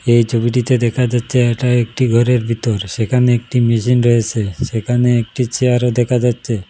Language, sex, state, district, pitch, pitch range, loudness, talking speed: Bengali, male, Assam, Hailakandi, 120 Hz, 115-125 Hz, -15 LUFS, 150 wpm